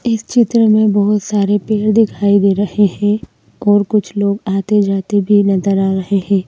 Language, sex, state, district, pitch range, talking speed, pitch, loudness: Hindi, female, Madhya Pradesh, Bhopal, 195-210 Hz, 175 wpm, 205 Hz, -14 LUFS